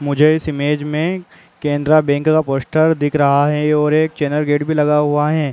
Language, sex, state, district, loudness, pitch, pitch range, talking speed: Hindi, male, Uttar Pradesh, Muzaffarnagar, -16 LUFS, 150 Hz, 145-155 Hz, 205 wpm